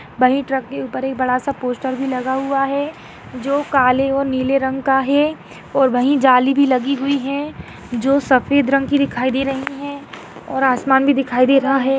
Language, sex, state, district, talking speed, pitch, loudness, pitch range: Hindi, female, Maharashtra, Aurangabad, 200 wpm, 270 Hz, -17 LUFS, 260-275 Hz